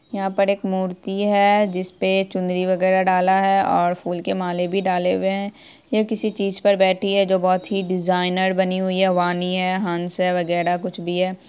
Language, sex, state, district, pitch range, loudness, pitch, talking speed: Hindi, female, Bihar, Saharsa, 180-195 Hz, -20 LUFS, 185 Hz, 215 wpm